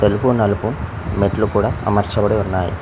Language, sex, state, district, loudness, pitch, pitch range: Telugu, male, Telangana, Mahabubabad, -18 LUFS, 105 Hz, 100-110 Hz